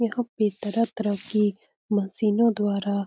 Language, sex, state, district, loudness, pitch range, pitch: Hindi, female, Bihar, Lakhisarai, -25 LUFS, 200-230 Hz, 210 Hz